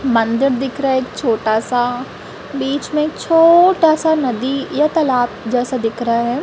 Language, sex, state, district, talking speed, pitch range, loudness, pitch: Hindi, female, Chhattisgarh, Raipur, 175 wpm, 245-300 Hz, -16 LUFS, 265 Hz